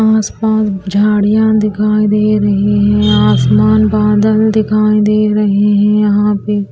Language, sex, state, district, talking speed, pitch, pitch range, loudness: Hindi, female, Bihar, Kaimur, 135 wpm, 210 Hz, 200-215 Hz, -11 LUFS